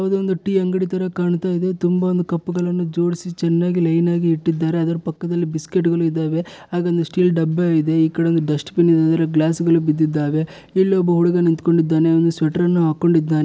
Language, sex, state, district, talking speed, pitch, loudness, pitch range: Kannada, male, Karnataka, Bellary, 185 wpm, 170 Hz, -18 LUFS, 165-175 Hz